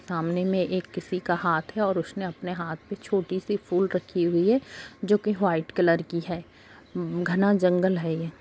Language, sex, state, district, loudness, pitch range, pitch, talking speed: Hindi, female, Bihar, Gopalganj, -26 LUFS, 170-195 Hz, 180 Hz, 195 wpm